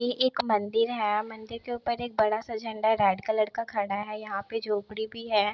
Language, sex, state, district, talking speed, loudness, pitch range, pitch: Hindi, female, Bihar, Begusarai, 240 wpm, -28 LUFS, 210-230 Hz, 220 Hz